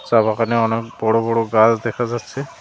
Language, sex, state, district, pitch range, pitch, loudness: Bengali, male, West Bengal, Cooch Behar, 115-120 Hz, 115 Hz, -18 LUFS